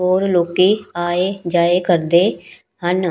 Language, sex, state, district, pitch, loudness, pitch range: Punjabi, female, Punjab, Pathankot, 180 Hz, -17 LUFS, 175-185 Hz